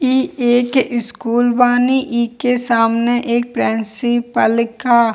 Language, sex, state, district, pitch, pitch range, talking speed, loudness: Hindi, female, Bihar, Kishanganj, 240 Hz, 235-245 Hz, 115 wpm, -16 LUFS